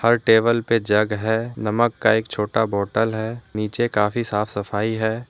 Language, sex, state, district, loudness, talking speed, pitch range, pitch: Hindi, male, Jharkhand, Deoghar, -21 LUFS, 180 wpm, 105-115 Hz, 110 Hz